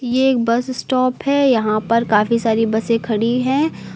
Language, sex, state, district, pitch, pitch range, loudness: Hindi, female, Uttar Pradesh, Lucknow, 235 Hz, 225-260 Hz, -17 LUFS